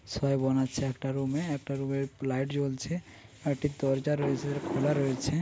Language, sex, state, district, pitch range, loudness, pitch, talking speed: Bengali, male, West Bengal, Paschim Medinipur, 135-145 Hz, -31 LUFS, 135 Hz, 190 wpm